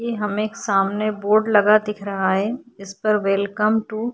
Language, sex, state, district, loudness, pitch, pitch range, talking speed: Hindi, female, Maharashtra, Chandrapur, -20 LUFS, 210 Hz, 200-215 Hz, 205 wpm